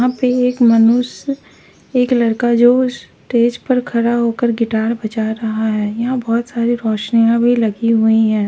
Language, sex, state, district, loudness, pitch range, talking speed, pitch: Hindi, female, Uttar Pradesh, Lalitpur, -15 LUFS, 225-245 Hz, 165 wpm, 235 Hz